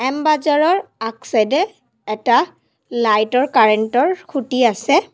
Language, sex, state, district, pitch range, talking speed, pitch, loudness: Assamese, female, Assam, Sonitpur, 225-305 Hz, 140 wpm, 255 Hz, -17 LUFS